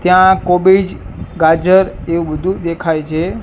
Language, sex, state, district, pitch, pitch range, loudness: Gujarati, male, Gujarat, Gandhinagar, 180 Hz, 165-190 Hz, -13 LUFS